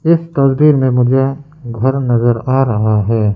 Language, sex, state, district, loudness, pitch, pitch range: Hindi, male, Arunachal Pradesh, Lower Dibang Valley, -13 LUFS, 130 Hz, 120-140 Hz